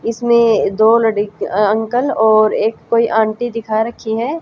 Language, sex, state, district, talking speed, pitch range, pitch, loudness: Hindi, female, Haryana, Jhajjar, 150 wpm, 220-235 Hz, 225 Hz, -15 LUFS